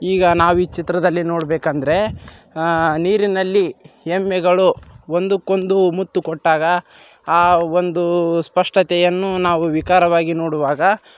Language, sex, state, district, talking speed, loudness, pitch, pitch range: Kannada, male, Karnataka, Raichur, 90 wpm, -17 LUFS, 175 Hz, 165-185 Hz